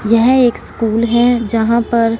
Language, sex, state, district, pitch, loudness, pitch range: Hindi, female, Punjab, Fazilka, 230 Hz, -13 LUFS, 225-240 Hz